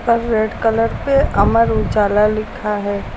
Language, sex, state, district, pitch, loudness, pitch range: Hindi, female, Uttar Pradesh, Lucknow, 215 Hz, -16 LUFS, 205-230 Hz